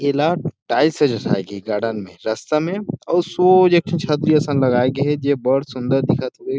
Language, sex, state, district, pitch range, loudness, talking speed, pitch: Chhattisgarhi, male, Chhattisgarh, Rajnandgaon, 130-170 Hz, -18 LUFS, 210 wpm, 145 Hz